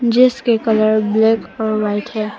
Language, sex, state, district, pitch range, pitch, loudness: Hindi, female, Arunachal Pradesh, Papum Pare, 215-230 Hz, 220 Hz, -16 LUFS